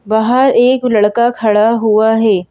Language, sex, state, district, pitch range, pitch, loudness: Hindi, female, Madhya Pradesh, Bhopal, 215-240 Hz, 225 Hz, -11 LUFS